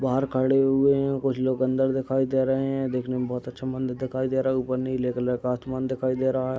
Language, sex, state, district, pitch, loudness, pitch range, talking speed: Hindi, male, Uttar Pradesh, Deoria, 130 Hz, -25 LUFS, 130-135 Hz, 275 wpm